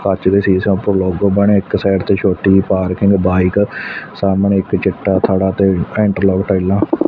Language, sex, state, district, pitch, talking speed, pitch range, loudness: Punjabi, male, Punjab, Fazilka, 95 Hz, 170 wpm, 95-100 Hz, -14 LUFS